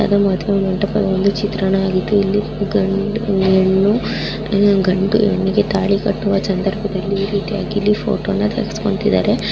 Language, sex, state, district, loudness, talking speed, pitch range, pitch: Kannada, female, Karnataka, Bijapur, -17 LUFS, 75 wpm, 195-205 Hz, 200 Hz